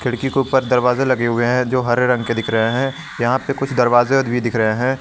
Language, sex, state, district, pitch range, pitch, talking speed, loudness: Hindi, male, Jharkhand, Garhwa, 120-130 Hz, 125 Hz, 250 wpm, -17 LUFS